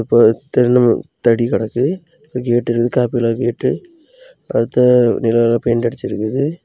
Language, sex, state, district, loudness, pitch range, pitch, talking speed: Tamil, male, Tamil Nadu, Kanyakumari, -16 LUFS, 115-130 Hz, 120 Hz, 115 wpm